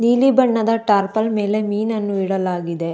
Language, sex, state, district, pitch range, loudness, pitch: Kannada, female, Karnataka, Dakshina Kannada, 195-225 Hz, -18 LUFS, 210 Hz